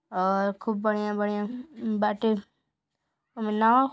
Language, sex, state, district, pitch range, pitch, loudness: Hindi, female, Uttar Pradesh, Gorakhpur, 205-225 Hz, 215 Hz, -27 LUFS